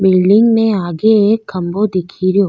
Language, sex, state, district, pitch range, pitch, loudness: Rajasthani, female, Rajasthan, Nagaur, 185-215 Hz, 195 Hz, -13 LUFS